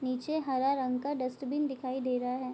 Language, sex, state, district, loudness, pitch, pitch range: Hindi, female, Bihar, Bhagalpur, -32 LUFS, 260 Hz, 255-280 Hz